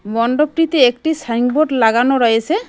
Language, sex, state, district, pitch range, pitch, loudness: Bengali, female, West Bengal, Cooch Behar, 235-310 Hz, 255 Hz, -15 LUFS